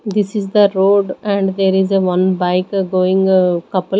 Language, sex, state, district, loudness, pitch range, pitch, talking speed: English, female, Maharashtra, Gondia, -15 LUFS, 185-200 Hz, 190 Hz, 180 wpm